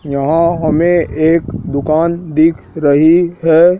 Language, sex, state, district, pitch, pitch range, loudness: Hindi, male, Madhya Pradesh, Dhar, 160 Hz, 155-170 Hz, -12 LUFS